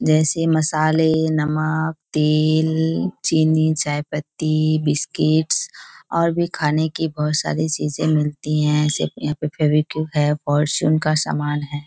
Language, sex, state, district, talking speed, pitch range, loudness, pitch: Hindi, female, Bihar, Kishanganj, 130 wpm, 150-160 Hz, -19 LUFS, 155 Hz